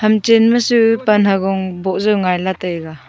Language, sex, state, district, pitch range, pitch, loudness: Wancho, female, Arunachal Pradesh, Longding, 185-225 Hz, 195 Hz, -15 LUFS